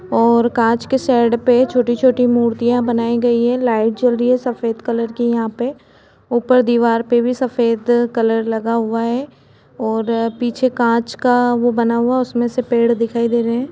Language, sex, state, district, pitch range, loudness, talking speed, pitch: Hindi, female, Chhattisgarh, Kabirdham, 230-245 Hz, -16 LUFS, 185 wpm, 235 Hz